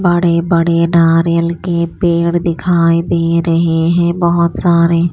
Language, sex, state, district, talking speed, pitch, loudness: Hindi, female, Maharashtra, Washim, 130 wpm, 170 Hz, -13 LUFS